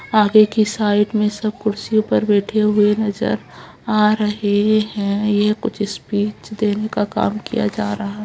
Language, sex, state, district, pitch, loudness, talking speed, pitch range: Hindi, female, Chhattisgarh, Kabirdham, 210 Hz, -18 LUFS, 160 wpm, 205-215 Hz